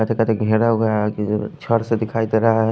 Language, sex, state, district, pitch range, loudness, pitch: Hindi, male, Odisha, Khordha, 110-115 Hz, -19 LUFS, 110 Hz